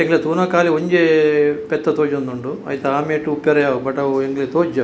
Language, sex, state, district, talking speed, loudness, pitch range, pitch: Tulu, male, Karnataka, Dakshina Kannada, 200 wpm, -17 LUFS, 140-160 Hz, 150 Hz